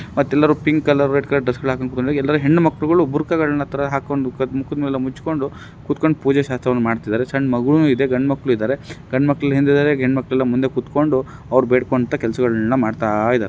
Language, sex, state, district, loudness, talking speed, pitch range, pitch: Kannada, male, Karnataka, Raichur, -18 LUFS, 180 wpm, 130-145 Hz, 135 Hz